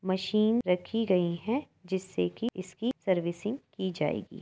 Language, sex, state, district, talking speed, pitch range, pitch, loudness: Hindi, female, Uttar Pradesh, Etah, 135 wpm, 180-220 Hz, 190 Hz, -31 LUFS